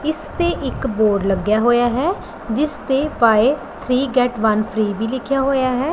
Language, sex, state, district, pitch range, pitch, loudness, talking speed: Punjabi, female, Punjab, Pathankot, 220-275 Hz, 255 Hz, -18 LUFS, 180 wpm